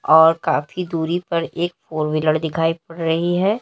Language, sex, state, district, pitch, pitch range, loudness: Hindi, female, Uttar Pradesh, Lalitpur, 165 Hz, 160-175 Hz, -20 LUFS